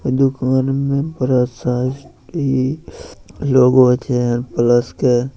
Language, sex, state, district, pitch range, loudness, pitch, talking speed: Maithili, male, Bihar, Samastipur, 125-135 Hz, -16 LUFS, 130 Hz, 100 wpm